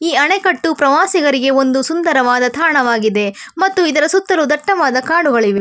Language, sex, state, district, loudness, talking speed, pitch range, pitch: Kannada, female, Karnataka, Bangalore, -13 LUFS, 115 wpm, 260-335 Hz, 295 Hz